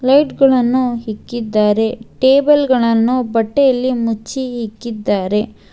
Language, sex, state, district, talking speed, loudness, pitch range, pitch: Kannada, female, Karnataka, Bangalore, 85 wpm, -15 LUFS, 225-260 Hz, 240 Hz